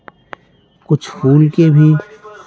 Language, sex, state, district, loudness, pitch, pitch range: Hindi, male, Bihar, Patna, -12 LUFS, 155 Hz, 150-195 Hz